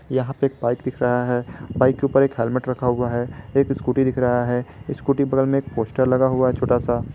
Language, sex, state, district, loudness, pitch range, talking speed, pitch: Hindi, male, Jharkhand, Garhwa, -21 LUFS, 125-135 Hz, 250 wpm, 130 Hz